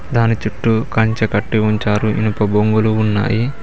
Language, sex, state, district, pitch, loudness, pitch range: Telugu, male, Telangana, Mahabubabad, 110 Hz, -16 LUFS, 105-110 Hz